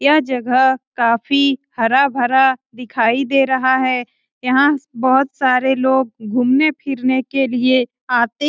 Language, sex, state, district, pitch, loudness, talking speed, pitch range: Hindi, female, Bihar, Lakhisarai, 260 Hz, -16 LUFS, 135 wpm, 250-270 Hz